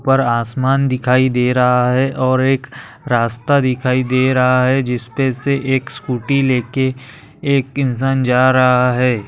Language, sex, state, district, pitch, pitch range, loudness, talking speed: Hindi, male, Maharashtra, Aurangabad, 130 Hz, 125-135 Hz, -15 LUFS, 150 wpm